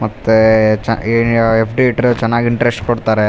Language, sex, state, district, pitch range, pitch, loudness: Kannada, male, Karnataka, Raichur, 110-120 Hz, 115 Hz, -13 LUFS